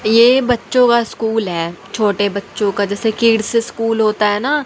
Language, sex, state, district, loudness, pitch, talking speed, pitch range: Hindi, female, Haryana, Jhajjar, -15 LUFS, 225 Hz, 180 wpm, 205-230 Hz